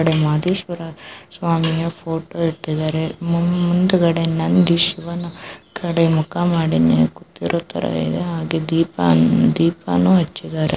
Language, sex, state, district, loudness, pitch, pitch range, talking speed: Kannada, female, Karnataka, Chamarajanagar, -18 LUFS, 165 Hz, 155-170 Hz, 100 wpm